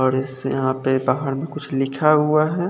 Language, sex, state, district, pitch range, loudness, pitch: Hindi, male, Chandigarh, Chandigarh, 130-150 Hz, -20 LUFS, 135 Hz